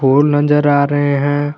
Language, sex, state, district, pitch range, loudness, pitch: Hindi, male, Jharkhand, Garhwa, 140-145 Hz, -13 LUFS, 145 Hz